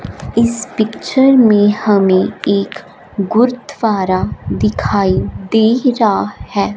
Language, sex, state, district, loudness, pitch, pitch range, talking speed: Hindi, female, Punjab, Fazilka, -14 LUFS, 210 Hz, 195-235 Hz, 90 wpm